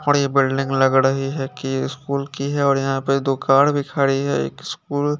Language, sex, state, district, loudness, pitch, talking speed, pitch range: Hindi, male, Chandigarh, Chandigarh, -20 LUFS, 135 Hz, 230 wpm, 135-140 Hz